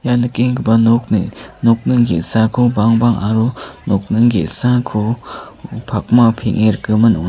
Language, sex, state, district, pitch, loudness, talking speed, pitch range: Garo, male, Meghalaya, South Garo Hills, 115 Hz, -14 LUFS, 105 wpm, 110-120 Hz